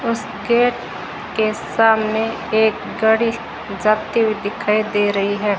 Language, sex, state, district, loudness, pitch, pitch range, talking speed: Hindi, female, Rajasthan, Bikaner, -18 LUFS, 220 Hz, 210-225 Hz, 130 wpm